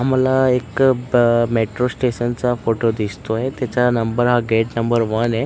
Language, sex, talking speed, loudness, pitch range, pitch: Marathi, male, 155 wpm, -18 LUFS, 115-125 Hz, 120 Hz